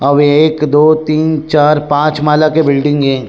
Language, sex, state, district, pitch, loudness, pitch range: Chhattisgarhi, male, Chhattisgarh, Rajnandgaon, 150 Hz, -11 LUFS, 145-155 Hz